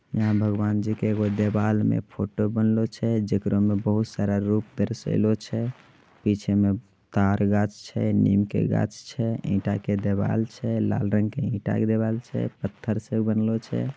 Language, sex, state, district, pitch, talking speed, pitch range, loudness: Angika, male, Bihar, Begusarai, 105 Hz, 170 wpm, 100-110 Hz, -25 LUFS